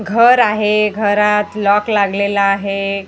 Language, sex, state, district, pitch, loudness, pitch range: Marathi, male, Maharashtra, Gondia, 205 Hz, -14 LUFS, 200-210 Hz